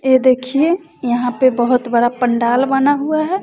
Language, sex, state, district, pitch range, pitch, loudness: Hindi, female, Bihar, West Champaran, 245-285 Hz, 255 Hz, -15 LUFS